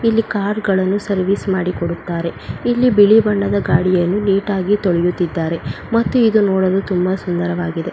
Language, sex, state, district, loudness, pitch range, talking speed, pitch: Kannada, female, Karnataka, Belgaum, -17 LUFS, 175-205 Hz, 105 wpm, 190 Hz